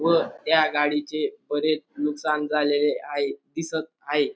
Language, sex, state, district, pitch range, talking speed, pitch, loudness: Marathi, male, Maharashtra, Dhule, 150-160 Hz, 125 wpm, 150 Hz, -25 LUFS